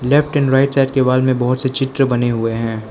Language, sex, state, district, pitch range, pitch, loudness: Hindi, male, Arunachal Pradesh, Lower Dibang Valley, 120-135 Hz, 130 Hz, -16 LUFS